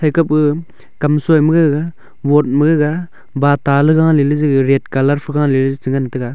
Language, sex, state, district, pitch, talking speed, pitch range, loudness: Wancho, male, Arunachal Pradesh, Longding, 145 Hz, 200 wpm, 135-155 Hz, -14 LUFS